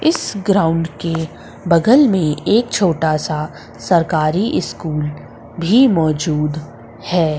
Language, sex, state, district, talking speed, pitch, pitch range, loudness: Hindi, female, Madhya Pradesh, Umaria, 105 wpm, 165 Hz, 155-190 Hz, -16 LUFS